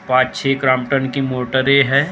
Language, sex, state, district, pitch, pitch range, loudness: Hindi, male, Maharashtra, Gondia, 135 Hz, 130-135 Hz, -16 LUFS